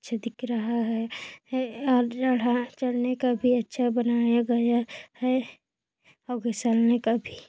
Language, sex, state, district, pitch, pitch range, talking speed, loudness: Hindi, female, Chhattisgarh, Kabirdham, 245 Hz, 235-255 Hz, 150 wpm, -26 LUFS